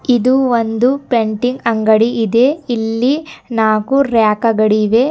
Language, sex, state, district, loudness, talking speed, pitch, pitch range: Kannada, female, Karnataka, Bidar, -14 LUFS, 105 wpm, 235 Hz, 220-255 Hz